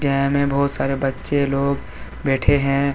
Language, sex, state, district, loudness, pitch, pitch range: Hindi, male, Jharkhand, Deoghar, -20 LUFS, 140 Hz, 135-140 Hz